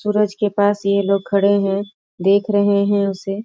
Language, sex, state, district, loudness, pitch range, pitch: Hindi, female, Bihar, Sitamarhi, -17 LUFS, 200-205 Hz, 200 Hz